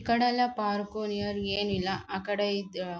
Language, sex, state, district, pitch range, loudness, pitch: Kannada, female, Karnataka, Bellary, 195-210 Hz, -30 LUFS, 205 Hz